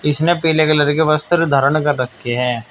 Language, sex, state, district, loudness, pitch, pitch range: Hindi, male, Uttar Pradesh, Saharanpur, -16 LUFS, 150 Hz, 130-160 Hz